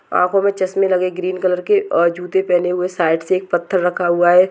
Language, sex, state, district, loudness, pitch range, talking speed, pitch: Hindi, female, Maharashtra, Chandrapur, -17 LUFS, 175-185 Hz, 240 wpm, 180 Hz